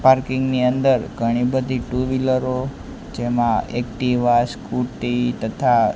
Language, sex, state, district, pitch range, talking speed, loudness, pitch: Gujarati, male, Gujarat, Gandhinagar, 120-130 Hz, 110 wpm, -20 LUFS, 125 Hz